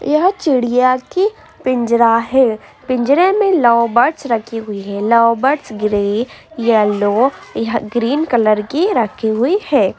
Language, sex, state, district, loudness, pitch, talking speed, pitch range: Hindi, female, Uttar Pradesh, Hamirpur, -15 LUFS, 240 Hz, 140 wpm, 225-290 Hz